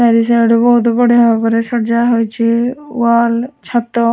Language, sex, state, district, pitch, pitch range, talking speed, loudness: Odia, female, Odisha, Khordha, 235 Hz, 230-240 Hz, 145 wpm, -13 LUFS